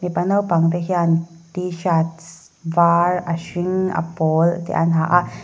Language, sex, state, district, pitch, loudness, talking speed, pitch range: Mizo, female, Mizoram, Aizawl, 170 Hz, -19 LUFS, 155 wpm, 165-180 Hz